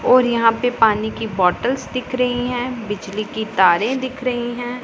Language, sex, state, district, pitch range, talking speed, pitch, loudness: Hindi, female, Punjab, Pathankot, 220-250 Hz, 185 wpm, 240 Hz, -19 LUFS